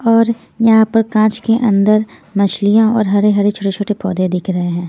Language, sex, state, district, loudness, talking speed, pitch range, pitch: Hindi, female, Punjab, Pathankot, -14 LUFS, 170 wpm, 195-225 Hz, 210 Hz